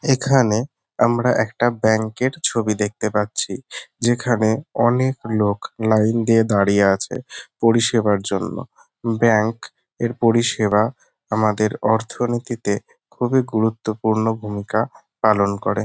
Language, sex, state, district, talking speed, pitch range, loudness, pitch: Bengali, male, West Bengal, North 24 Parganas, 100 wpm, 105-120 Hz, -19 LUFS, 110 Hz